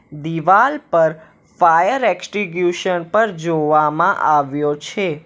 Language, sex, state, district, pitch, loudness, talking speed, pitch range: Gujarati, male, Gujarat, Valsad, 165 Hz, -16 LUFS, 90 wpm, 155-195 Hz